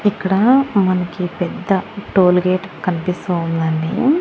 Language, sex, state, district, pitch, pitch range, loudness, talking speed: Telugu, female, Andhra Pradesh, Annamaya, 185 Hz, 180-205 Hz, -17 LUFS, 100 wpm